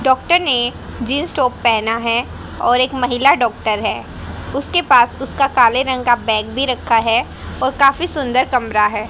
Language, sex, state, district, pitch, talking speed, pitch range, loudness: Hindi, female, Haryana, Jhajjar, 250 Hz, 170 wpm, 230-270 Hz, -16 LUFS